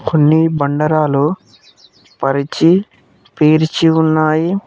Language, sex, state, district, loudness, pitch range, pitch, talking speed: Telugu, male, Telangana, Mahabubabad, -14 LUFS, 145-160 Hz, 155 Hz, 65 wpm